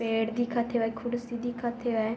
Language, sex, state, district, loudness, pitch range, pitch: Chhattisgarhi, female, Chhattisgarh, Bilaspur, -30 LUFS, 225-240 Hz, 235 Hz